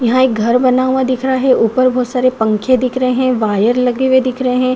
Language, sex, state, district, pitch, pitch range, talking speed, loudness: Hindi, female, Bihar, Saharsa, 255 Hz, 245-255 Hz, 265 wpm, -14 LUFS